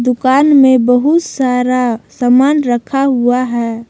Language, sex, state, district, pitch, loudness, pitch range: Hindi, female, Jharkhand, Palamu, 250 Hz, -12 LUFS, 245-270 Hz